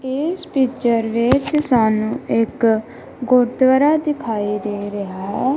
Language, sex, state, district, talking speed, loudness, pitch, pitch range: Punjabi, female, Punjab, Kapurthala, 110 wpm, -18 LUFS, 245 Hz, 220-270 Hz